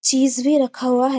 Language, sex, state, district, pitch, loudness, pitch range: Hindi, female, Chhattisgarh, Bastar, 265 Hz, -18 LUFS, 250-270 Hz